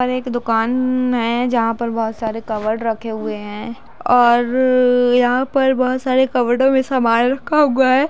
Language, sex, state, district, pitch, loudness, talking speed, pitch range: Hindi, female, Bihar, East Champaran, 245 Hz, -17 LUFS, 170 wpm, 230-255 Hz